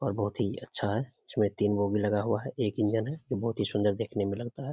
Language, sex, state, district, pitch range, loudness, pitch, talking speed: Hindi, male, Bihar, Samastipur, 105-120 Hz, -30 LUFS, 105 Hz, 290 wpm